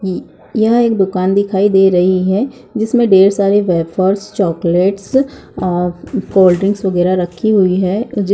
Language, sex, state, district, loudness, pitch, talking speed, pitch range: Hindi, female, Bihar, Saran, -13 LUFS, 195 Hz, 145 wpm, 185-205 Hz